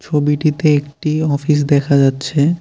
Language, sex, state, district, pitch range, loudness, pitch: Bengali, male, West Bengal, Cooch Behar, 140-150 Hz, -15 LUFS, 150 Hz